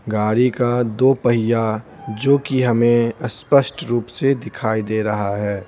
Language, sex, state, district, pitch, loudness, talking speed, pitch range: Hindi, male, Bihar, Patna, 120 Hz, -18 LUFS, 150 wpm, 110-130 Hz